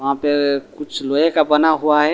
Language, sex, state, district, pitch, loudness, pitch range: Hindi, male, Delhi, New Delhi, 150 Hz, -17 LUFS, 140-155 Hz